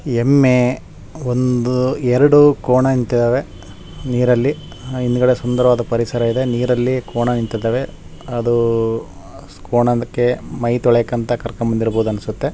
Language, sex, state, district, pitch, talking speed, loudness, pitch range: Kannada, male, Karnataka, Shimoga, 120 Hz, 90 wpm, -17 LUFS, 120-125 Hz